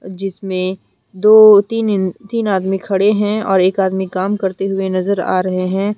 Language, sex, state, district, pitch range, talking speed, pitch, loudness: Hindi, female, Jharkhand, Deoghar, 185-205 Hz, 170 wpm, 195 Hz, -15 LUFS